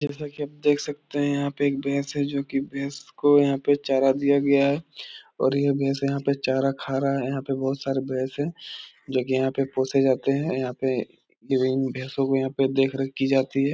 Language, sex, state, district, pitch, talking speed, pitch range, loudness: Hindi, male, Bihar, Jahanabad, 135 Hz, 245 wpm, 135-140 Hz, -24 LUFS